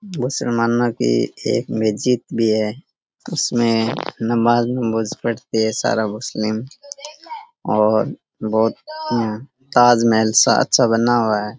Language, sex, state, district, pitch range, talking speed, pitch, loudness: Rajasthani, male, Rajasthan, Churu, 110-125 Hz, 115 wpm, 115 Hz, -18 LUFS